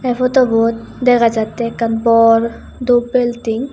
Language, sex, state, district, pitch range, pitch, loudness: Chakma, female, Tripura, West Tripura, 230-250 Hz, 235 Hz, -15 LUFS